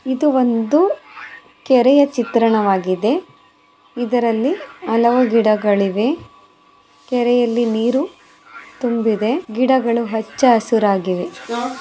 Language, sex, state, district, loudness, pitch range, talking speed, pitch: Kannada, female, Karnataka, Mysore, -17 LUFS, 220-255 Hz, 65 wpm, 235 Hz